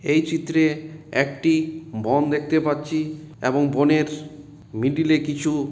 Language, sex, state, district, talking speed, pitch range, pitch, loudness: Bengali, male, West Bengal, Malda, 115 wpm, 145-155 Hz, 150 Hz, -22 LUFS